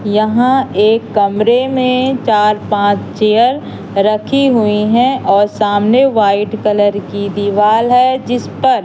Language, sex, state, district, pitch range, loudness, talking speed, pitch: Hindi, female, Madhya Pradesh, Katni, 205-250 Hz, -12 LUFS, 130 wpm, 215 Hz